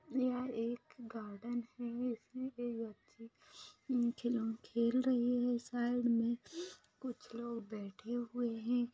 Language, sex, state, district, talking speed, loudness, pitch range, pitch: Hindi, female, Maharashtra, Nagpur, 120 wpm, -39 LUFS, 230-245 Hz, 240 Hz